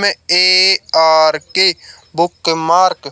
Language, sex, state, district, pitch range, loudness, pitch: Hindi, male, Haryana, Jhajjar, 160-185 Hz, -12 LUFS, 170 Hz